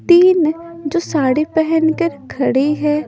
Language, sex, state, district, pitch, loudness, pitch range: Hindi, female, Punjab, Pathankot, 315 Hz, -16 LUFS, 295-335 Hz